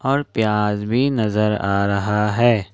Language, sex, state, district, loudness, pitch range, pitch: Hindi, male, Jharkhand, Ranchi, -19 LUFS, 105-120 Hz, 105 Hz